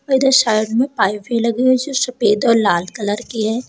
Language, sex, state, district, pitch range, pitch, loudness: Hindi, female, Uttar Pradesh, Lalitpur, 215-255 Hz, 230 Hz, -16 LUFS